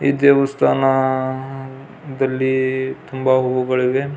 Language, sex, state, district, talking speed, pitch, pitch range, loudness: Kannada, male, Karnataka, Belgaum, 100 wpm, 130 Hz, 130-135 Hz, -18 LUFS